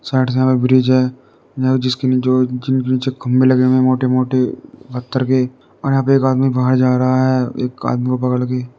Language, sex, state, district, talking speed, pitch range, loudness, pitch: Hindi, male, Uttar Pradesh, Deoria, 210 wpm, 125-130 Hz, -16 LUFS, 130 Hz